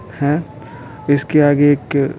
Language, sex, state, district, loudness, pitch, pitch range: Hindi, male, Bihar, Patna, -15 LUFS, 145 Hz, 140-145 Hz